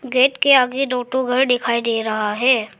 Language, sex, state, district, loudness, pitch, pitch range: Hindi, female, Arunachal Pradesh, Lower Dibang Valley, -17 LUFS, 250 Hz, 235-260 Hz